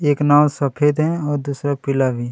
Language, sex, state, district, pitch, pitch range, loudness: Hindi, male, Chhattisgarh, Kabirdham, 145 Hz, 140-145 Hz, -18 LUFS